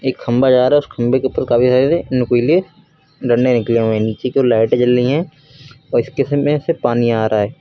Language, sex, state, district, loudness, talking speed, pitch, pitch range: Hindi, male, Uttar Pradesh, Lucknow, -15 LUFS, 245 wpm, 125 Hz, 120-140 Hz